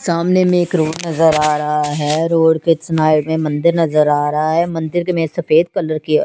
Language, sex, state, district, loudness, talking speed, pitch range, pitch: Hindi, female, Chandigarh, Chandigarh, -15 LUFS, 220 wpm, 155-170 Hz, 160 Hz